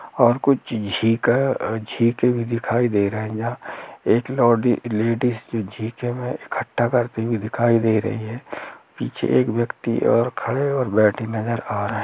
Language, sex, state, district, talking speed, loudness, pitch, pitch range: Hindi, male, Chhattisgarh, Rajnandgaon, 145 wpm, -21 LUFS, 115 Hz, 110-120 Hz